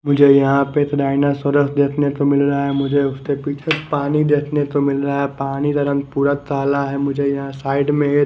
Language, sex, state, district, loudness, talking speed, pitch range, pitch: Hindi, male, Maharashtra, Mumbai Suburban, -18 LUFS, 220 wpm, 140-145 Hz, 140 Hz